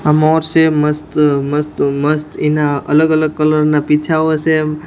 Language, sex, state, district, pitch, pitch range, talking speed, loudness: Gujarati, male, Gujarat, Gandhinagar, 150 Hz, 150-155 Hz, 150 wpm, -14 LUFS